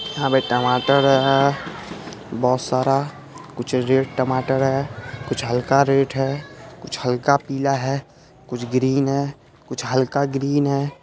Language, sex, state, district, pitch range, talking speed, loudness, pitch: Hindi, male, Bihar, Araria, 130-140 Hz, 135 wpm, -20 LUFS, 135 Hz